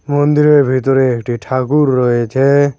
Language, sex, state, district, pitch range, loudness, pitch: Bengali, male, West Bengal, Cooch Behar, 130-145 Hz, -13 LUFS, 135 Hz